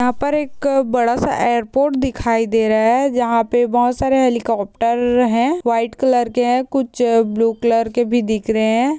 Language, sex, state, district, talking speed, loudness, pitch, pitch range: Hindi, female, Bihar, Jahanabad, 185 wpm, -17 LUFS, 240 Hz, 230-260 Hz